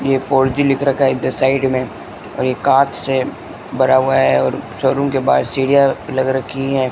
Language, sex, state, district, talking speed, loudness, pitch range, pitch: Hindi, male, Rajasthan, Bikaner, 210 wpm, -16 LUFS, 130-135 Hz, 135 Hz